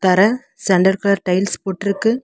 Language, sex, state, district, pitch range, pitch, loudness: Tamil, female, Tamil Nadu, Chennai, 190-215 Hz, 200 Hz, -17 LUFS